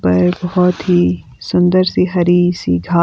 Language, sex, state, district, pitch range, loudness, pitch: Hindi, female, Himachal Pradesh, Shimla, 120-180 Hz, -14 LUFS, 175 Hz